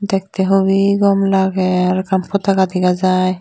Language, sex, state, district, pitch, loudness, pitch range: Chakma, female, Tripura, Dhalai, 190 Hz, -15 LUFS, 185-195 Hz